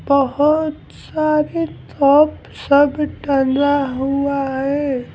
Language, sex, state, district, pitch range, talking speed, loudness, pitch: Hindi, male, Bihar, Patna, 275-300 Hz, 80 wpm, -17 LUFS, 285 Hz